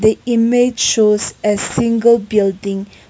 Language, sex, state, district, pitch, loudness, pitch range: English, female, Nagaland, Kohima, 220 Hz, -15 LUFS, 205-235 Hz